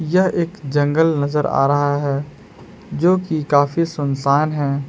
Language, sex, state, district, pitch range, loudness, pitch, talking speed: Hindi, male, Jharkhand, Palamu, 140-160 Hz, -18 LUFS, 145 Hz, 145 wpm